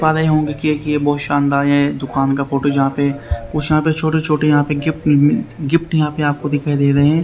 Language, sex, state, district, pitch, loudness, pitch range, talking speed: Hindi, male, Haryana, Rohtak, 145 Hz, -16 LUFS, 140-155 Hz, 230 wpm